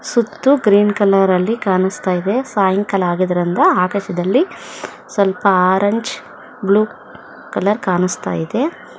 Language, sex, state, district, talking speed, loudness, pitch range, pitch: Kannada, female, Karnataka, Bangalore, 100 wpm, -16 LUFS, 185-215 Hz, 200 Hz